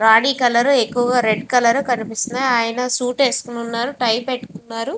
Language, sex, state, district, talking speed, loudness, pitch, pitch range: Telugu, female, Andhra Pradesh, Visakhapatnam, 155 wpm, -18 LUFS, 245 Hz, 230-250 Hz